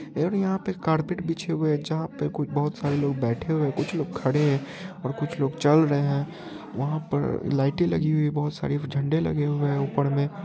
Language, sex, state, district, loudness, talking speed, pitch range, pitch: Hindi, male, Bihar, Purnia, -26 LUFS, 210 wpm, 140-160 Hz, 150 Hz